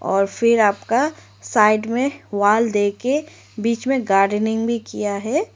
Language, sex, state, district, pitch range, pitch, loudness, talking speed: Hindi, female, Arunachal Pradesh, Lower Dibang Valley, 205-245 Hz, 225 Hz, -19 LUFS, 140 wpm